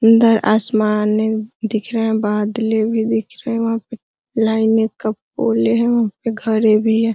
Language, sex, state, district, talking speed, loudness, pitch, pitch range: Hindi, female, Bihar, Araria, 175 wpm, -17 LUFS, 220 Hz, 215-225 Hz